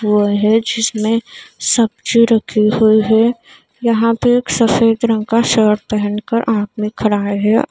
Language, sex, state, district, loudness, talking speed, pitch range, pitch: Hindi, female, Maharashtra, Mumbai Suburban, -14 LUFS, 140 wpm, 210-230 Hz, 220 Hz